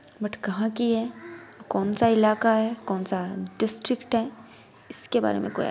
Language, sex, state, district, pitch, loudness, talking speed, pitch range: Bhojpuri, female, Uttar Pradesh, Deoria, 220 Hz, -25 LUFS, 160 wpm, 205-230 Hz